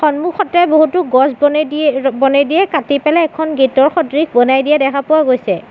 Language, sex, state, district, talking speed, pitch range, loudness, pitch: Assamese, female, Assam, Sonitpur, 170 wpm, 270-315 Hz, -13 LUFS, 295 Hz